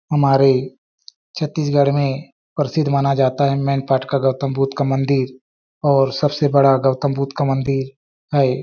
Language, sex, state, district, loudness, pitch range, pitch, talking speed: Hindi, male, Chhattisgarh, Balrampur, -18 LUFS, 135-140 Hz, 140 Hz, 155 wpm